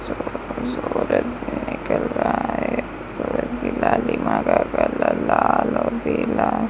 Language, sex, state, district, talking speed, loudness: Hindi, female, Rajasthan, Bikaner, 80 wpm, -22 LUFS